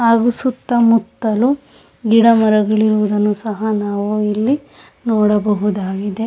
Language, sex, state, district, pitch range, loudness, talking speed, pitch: Kannada, female, Karnataka, Shimoga, 210-230 Hz, -16 LUFS, 75 wpm, 215 Hz